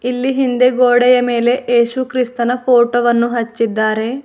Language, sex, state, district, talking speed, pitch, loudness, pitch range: Kannada, female, Karnataka, Bidar, 125 wpm, 245 Hz, -14 LUFS, 235-250 Hz